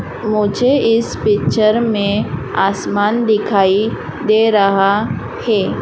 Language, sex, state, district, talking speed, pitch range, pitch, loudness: Hindi, female, Madhya Pradesh, Dhar, 95 wpm, 200-220 Hz, 210 Hz, -15 LUFS